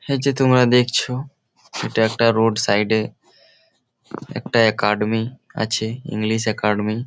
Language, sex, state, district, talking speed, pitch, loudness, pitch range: Bengali, male, West Bengal, Malda, 120 wpm, 115 Hz, -19 LUFS, 110-125 Hz